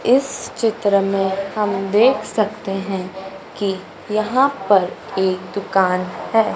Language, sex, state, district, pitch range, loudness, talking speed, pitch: Hindi, female, Madhya Pradesh, Dhar, 190-215 Hz, -19 LUFS, 120 wpm, 195 Hz